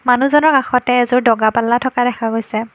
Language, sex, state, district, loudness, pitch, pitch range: Assamese, female, Assam, Kamrup Metropolitan, -14 LUFS, 245 Hz, 225-250 Hz